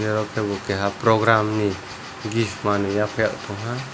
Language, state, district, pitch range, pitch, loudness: Kokborok, Tripura, West Tripura, 100-115 Hz, 105 Hz, -22 LUFS